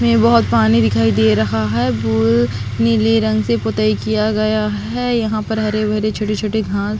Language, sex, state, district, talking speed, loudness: Hindi, female, Chhattisgarh, Sukma, 170 wpm, -16 LUFS